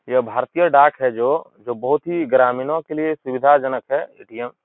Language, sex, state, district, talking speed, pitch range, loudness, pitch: Hindi, male, Uttar Pradesh, Etah, 205 wpm, 125-155 Hz, -18 LUFS, 130 Hz